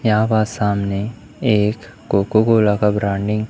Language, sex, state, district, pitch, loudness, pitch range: Hindi, male, Madhya Pradesh, Umaria, 105 Hz, -18 LUFS, 100-110 Hz